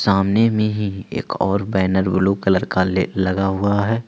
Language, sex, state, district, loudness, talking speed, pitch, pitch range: Hindi, male, Jharkhand, Ranchi, -19 LUFS, 190 wpm, 95 Hz, 95-105 Hz